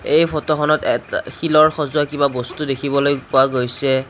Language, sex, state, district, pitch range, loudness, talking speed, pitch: Assamese, male, Assam, Kamrup Metropolitan, 135-155 Hz, -18 LUFS, 160 wpm, 145 Hz